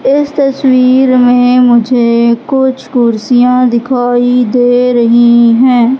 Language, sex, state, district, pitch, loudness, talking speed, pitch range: Hindi, female, Madhya Pradesh, Katni, 245 Hz, -8 LUFS, 100 wpm, 235-255 Hz